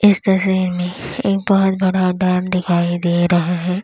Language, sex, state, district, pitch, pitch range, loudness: Hindi, female, Uttar Pradesh, Lalitpur, 185 Hz, 175-190 Hz, -17 LUFS